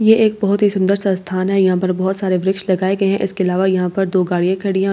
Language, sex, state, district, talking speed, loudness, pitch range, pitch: Hindi, female, Delhi, New Delhi, 330 wpm, -17 LUFS, 185-195 Hz, 190 Hz